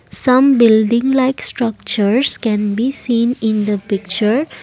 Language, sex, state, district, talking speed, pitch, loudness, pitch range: English, female, Assam, Kamrup Metropolitan, 130 wpm, 235 Hz, -15 LUFS, 215-255 Hz